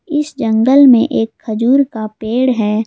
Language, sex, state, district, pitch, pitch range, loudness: Hindi, female, Jharkhand, Garhwa, 235 Hz, 220-270 Hz, -13 LUFS